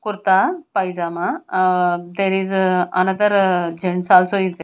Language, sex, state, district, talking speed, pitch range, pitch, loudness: English, female, Punjab, Kapurthala, 130 wpm, 180-195 Hz, 185 Hz, -18 LUFS